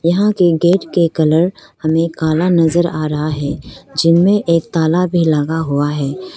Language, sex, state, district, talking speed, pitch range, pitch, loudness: Hindi, female, Arunachal Pradesh, Lower Dibang Valley, 170 wpm, 155-175 Hz, 165 Hz, -15 LUFS